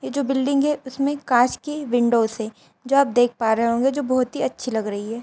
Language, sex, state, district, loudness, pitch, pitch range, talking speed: Hindi, female, Bihar, Purnia, -21 LUFS, 250 Hz, 230-280 Hz, 250 wpm